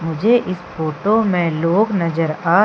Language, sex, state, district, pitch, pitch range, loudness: Hindi, female, Madhya Pradesh, Umaria, 175 Hz, 165-205 Hz, -18 LUFS